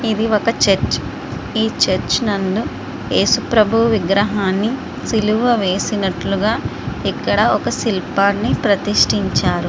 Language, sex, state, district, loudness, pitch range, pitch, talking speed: Telugu, female, Andhra Pradesh, Srikakulam, -17 LUFS, 200-225 Hz, 215 Hz, 100 wpm